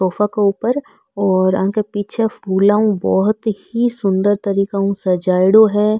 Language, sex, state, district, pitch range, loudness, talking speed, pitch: Marwari, female, Rajasthan, Nagaur, 195-220 Hz, -16 LUFS, 150 wpm, 205 Hz